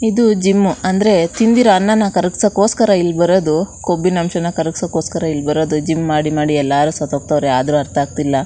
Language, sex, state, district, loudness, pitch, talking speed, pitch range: Kannada, female, Karnataka, Shimoga, -15 LUFS, 170 Hz, 150 wpm, 150-195 Hz